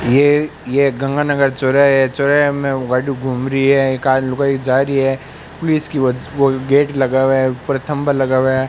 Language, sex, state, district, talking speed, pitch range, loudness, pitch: Hindi, male, Rajasthan, Bikaner, 200 wpm, 130-140 Hz, -15 LUFS, 135 Hz